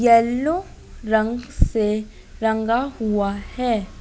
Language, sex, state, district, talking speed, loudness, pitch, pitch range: Hindi, female, Madhya Pradesh, Dhar, 90 wpm, -22 LUFS, 225 Hz, 215-240 Hz